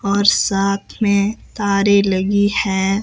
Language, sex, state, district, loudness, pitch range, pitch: Hindi, female, Himachal Pradesh, Shimla, -16 LUFS, 195-205 Hz, 200 Hz